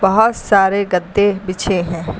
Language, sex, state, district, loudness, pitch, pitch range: Hindi, female, Uttar Pradesh, Lucknow, -16 LUFS, 195 Hz, 185-205 Hz